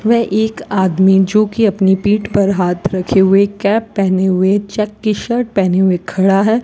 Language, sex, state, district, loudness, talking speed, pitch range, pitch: Hindi, female, Rajasthan, Bikaner, -14 LUFS, 180 wpm, 190-215 Hz, 200 Hz